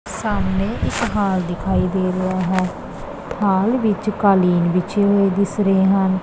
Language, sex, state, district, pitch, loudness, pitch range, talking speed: Punjabi, female, Punjab, Pathankot, 195 Hz, -18 LUFS, 185-205 Hz, 145 wpm